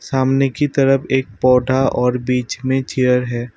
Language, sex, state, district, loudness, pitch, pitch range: Hindi, male, Assam, Kamrup Metropolitan, -17 LUFS, 130 Hz, 125-135 Hz